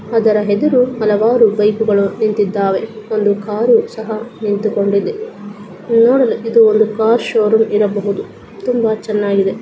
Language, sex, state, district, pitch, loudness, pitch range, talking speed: Kannada, female, Karnataka, Bijapur, 215 Hz, -14 LUFS, 205-225 Hz, 105 wpm